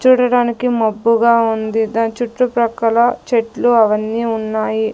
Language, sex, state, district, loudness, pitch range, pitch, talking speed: Telugu, female, Andhra Pradesh, Sri Satya Sai, -15 LUFS, 220-240 Hz, 230 Hz, 110 wpm